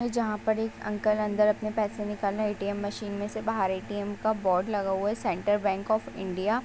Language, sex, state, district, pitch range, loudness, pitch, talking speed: Hindi, female, Bihar, Saran, 200-220 Hz, -29 LUFS, 210 Hz, 215 wpm